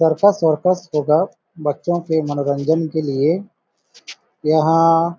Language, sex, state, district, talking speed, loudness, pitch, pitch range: Hindi, male, Chhattisgarh, Balrampur, 115 wpm, -18 LUFS, 160 Hz, 150-170 Hz